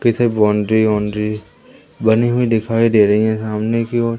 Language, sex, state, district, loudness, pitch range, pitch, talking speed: Hindi, male, Madhya Pradesh, Umaria, -16 LUFS, 105-115 Hz, 110 Hz, 170 wpm